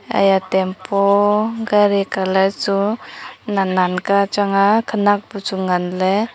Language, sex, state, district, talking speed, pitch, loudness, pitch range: Wancho, female, Arunachal Pradesh, Longding, 140 wpm, 200 Hz, -17 LUFS, 190-205 Hz